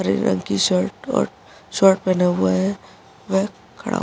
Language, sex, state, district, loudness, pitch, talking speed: Hindi, female, Bihar, Saharsa, -20 LUFS, 180 Hz, 180 wpm